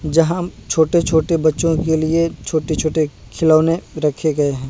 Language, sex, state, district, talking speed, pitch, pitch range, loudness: Hindi, male, Bihar, Kaimur, 155 wpm, 160 Hz, 155-165 Hz, -17 LUFS